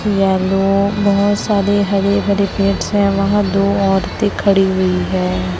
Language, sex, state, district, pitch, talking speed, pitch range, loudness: Hindi, male, Chhattisgarh, Raipur, 195 Hz, 150 wpm, 195-200 Hz, -15 LUFS